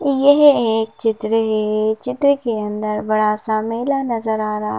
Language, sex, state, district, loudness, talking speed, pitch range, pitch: Hindi, female, Madhya Pradesh, Bhopal, -18 LUFS, 175 wpm, 215-250 Hz, 220 Hz